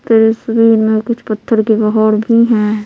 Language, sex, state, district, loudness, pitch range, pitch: Hindi, female, Bihar, Patna, -12 LUFS, 215-230 Hz, 220 Hz